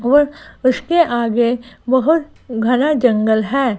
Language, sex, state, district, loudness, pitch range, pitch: Hindi, female, Gujarat, Gandhinagar, -16 LUFS, 240-290 Hz, 250 Hz